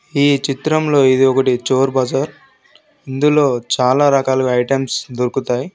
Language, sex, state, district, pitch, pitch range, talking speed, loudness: Telugu, male, Telangana, Mahabubabad, 135 Hz, 130-145 Hz, 125 wpm, -15 LUFS